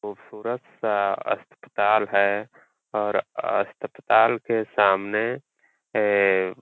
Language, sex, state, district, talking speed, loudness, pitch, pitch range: Hindi, male, Uttar Pradesh, Ghazipur, 90 wpm, -23 LUFS, 105 Hz, 100-110 Hz